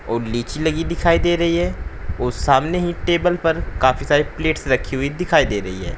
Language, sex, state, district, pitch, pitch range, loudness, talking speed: Hindi, male, Uttar Pradesh, Saharanpur, 150 Hz, 120-170 Hz, -19 LUFS, 220 wpm